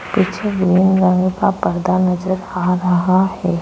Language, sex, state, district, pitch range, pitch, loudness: Hindi, female, Goa, North and South Goa, 180-190 Hz, 185 Hz, -16 LUFS